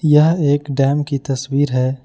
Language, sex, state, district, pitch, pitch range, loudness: Hindi, male, Jharkhand, Ranchi, 140 Hz, 135-150 Hz, -17 LUFS